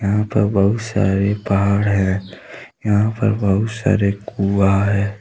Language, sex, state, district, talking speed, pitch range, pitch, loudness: Hindi, male, Jharkhand, Deoghar, 140 wpm, 100-105 Hz, 100 Hz, -18 LUFS